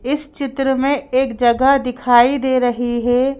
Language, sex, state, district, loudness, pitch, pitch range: Hindi, female, Madhya Pradesh, Bhopal, -16 LUFS, 260 Hz, 245-275 Hz